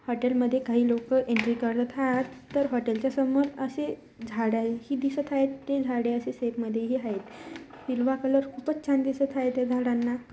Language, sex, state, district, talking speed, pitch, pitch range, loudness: Marathi, female, Maharashtra, Dhule, 170 wpm, 255 Hz, 235-270 Hz, -28 LUFS